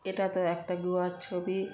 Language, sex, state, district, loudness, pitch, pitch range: Bengali, female, West Bengal, Kolkata, -32 LUFS, 180 Hz, 180-190 Hz